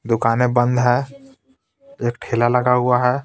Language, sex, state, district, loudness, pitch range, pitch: Hindi, male, Bihar, Patna, -18 LUFS, 120-130 Hz, 125 Hz